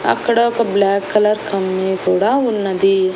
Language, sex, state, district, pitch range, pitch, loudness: Telugu, female, Andhra Pradesh, Annamaya, 190-215 Hz, 200 Hz, -16 LUFS